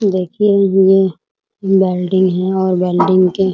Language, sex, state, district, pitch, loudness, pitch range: Hindi, female, Bihar, Muzaffarpur, 190 Hz, -13 LUFS, 185-195 Hz